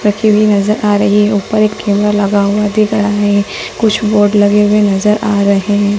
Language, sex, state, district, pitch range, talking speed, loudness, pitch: Hindi, male, Madhya Pradesh, Dhar, 205-210 Hz, 220 wpm, -11 LUFS, 205 Hz